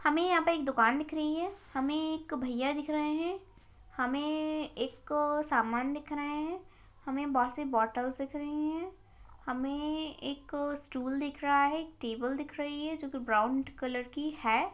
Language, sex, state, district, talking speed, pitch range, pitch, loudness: Hindi, female, Bihar, Begusarai, 180 wpm, 260-305 Hz, 290 Hz, -33 LUFS